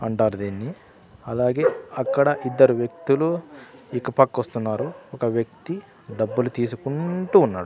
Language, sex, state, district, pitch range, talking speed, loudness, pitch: Telugu, male, Andhra Pradesh, Sri Satya Sai, 115-145 Hz, 100 wpm, -23 LUFS, 125 Hz